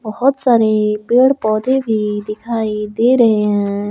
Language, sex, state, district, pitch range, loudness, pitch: Hindi, male, Jharkhand, Palamu, 210-240 Hz, -15 LUFS, 220 Hz